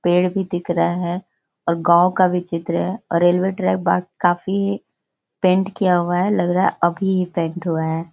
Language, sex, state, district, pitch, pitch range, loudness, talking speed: Hindi, female, Bihar, Jahanabad, 175 Hz, 170-185 Hz, -19 LUFS, 215 wpm